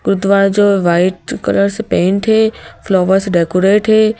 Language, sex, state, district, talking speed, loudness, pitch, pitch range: Hindi, female, Madhya Pradesh, Bhopal, 160 wpm, -13 LUFS, 195 Hz, 185-210 Hz